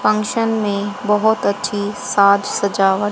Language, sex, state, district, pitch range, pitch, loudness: Hindi, female, Haryana, Jhajjar, 200-210 Hz, 205 Hz, -17 LUFS